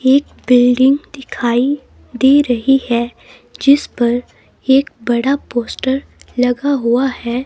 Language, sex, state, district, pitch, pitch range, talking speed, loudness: Hindi, female, Himachal Pradesh, Shimla, 260 Hz, 245-275 Hz, 110 wpm, -15 LUFS